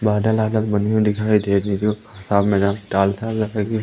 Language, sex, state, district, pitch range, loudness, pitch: Hindi, male, Madhya Pradesh, Umaria, 100-110 Hz, -19 LUFS, 105 Hz